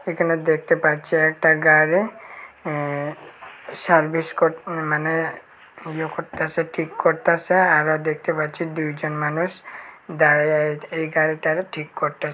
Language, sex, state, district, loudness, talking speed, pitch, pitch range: Bengali, male, Tripura, Unakoti, -20 LUFS, 115 wpm, 160 Hz, 155-165 Hz